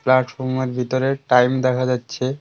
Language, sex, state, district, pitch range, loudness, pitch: Bengali, male, West Bengal, Cooch Behar, 125-130 Hz, -20 LUFS, 130 Hz